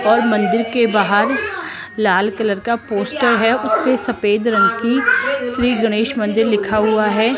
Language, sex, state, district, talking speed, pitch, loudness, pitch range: Hindi, female, Rajasthan, Jaipur, 155 wpm, 230 Hz, -16 LUFS, 215-245 Hz